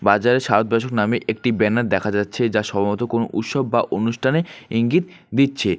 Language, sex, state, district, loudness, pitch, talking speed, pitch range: Bengali, male, West Bengal, Alipurduar, -20 LUFS, 115 Hz, 165 wpm, 105-130 Hz